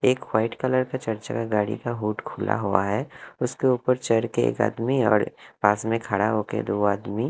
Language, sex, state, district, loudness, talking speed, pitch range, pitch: Hindi, male, Punjab, Kapurthala, -24 LUFS, 195 wpm, 105-125 Hz, 115 Hz